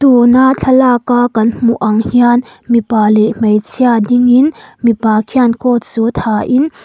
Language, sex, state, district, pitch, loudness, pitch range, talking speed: Mizo, female, Mizoram, Aizawl, 240 Hz, -11 LUFS, 225-255 Hz, 155 wpm